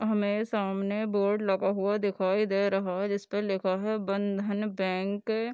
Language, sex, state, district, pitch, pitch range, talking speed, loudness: Hindi, female, Bihar, Darbhanga, 200 Hz, 195-210 Hz, 160 wpm, -29 LUFS